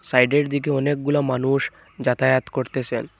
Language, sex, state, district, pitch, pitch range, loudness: Bengali, male, Assam, Hailakandi, 135 Hz, 130-145 Hz, -21 LUFS